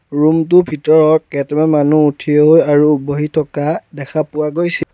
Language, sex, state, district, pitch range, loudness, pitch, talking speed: Assamese, male, Assam, Sonitpur, 145-155 Hz, -13 LUFS, 150 Hz, 160 wpm